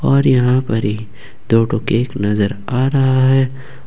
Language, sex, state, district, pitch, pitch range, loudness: Hindi, male, Jharkhand, Ranchi, 125 Hz, 115-130 Hz, -16 LUFS